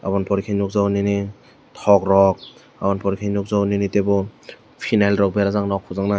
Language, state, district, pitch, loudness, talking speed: Kokborok, Tripura, West Tripura, 100 Hz, -19 LUFS, 185 wpm